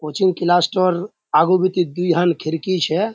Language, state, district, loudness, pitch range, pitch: Surjapuri, Bihar, Kishanganj, -18 LUFS, 170-185 Hz, 175 Hz